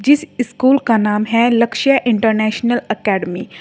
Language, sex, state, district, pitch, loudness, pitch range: Hindi, female, Uttar Pradesh, Shamli, 230 Hz, -15 LUFS, 215-250 Hz